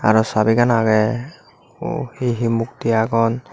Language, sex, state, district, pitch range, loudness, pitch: Chakma, male, Tripura, Dhalai, 110-125 Hz, -18 LUFS, 115 Hz